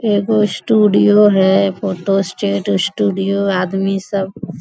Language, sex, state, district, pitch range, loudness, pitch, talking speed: Hindi, female, Bihar, Bhagalpur, 190-205 Hz, -15 LUFS, 195 Hz, 115 wpm